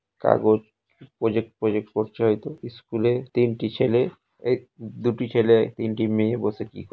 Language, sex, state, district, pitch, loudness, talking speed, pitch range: Bengali, male, West Bengal, North 24 Parganas, 115 Hz, -24 LUFS, 140 wpm, 110-120 Hz